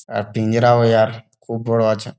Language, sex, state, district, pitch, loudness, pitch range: Bengali, male, West Bengal, Jalpaiguri, 115 Hz, -17 LUFS, 110-115 Hz